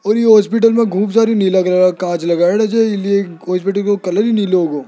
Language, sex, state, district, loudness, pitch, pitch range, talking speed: Hindi, male, Rajasthan, Jaipur, -14 LUFS, 200 Hz, 180-215 Hz, 235 wpm